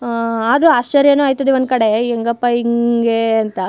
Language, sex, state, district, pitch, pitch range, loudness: Kannada, female, Karnataka, Chamarajanagar, 235 Hz, 230-265 Hz, -14 LUFS